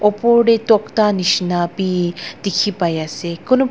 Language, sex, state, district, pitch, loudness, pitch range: Nagamese, female, Nagaland, Dimapur, 195 Hz, -17 LUFS, 175-220 Hz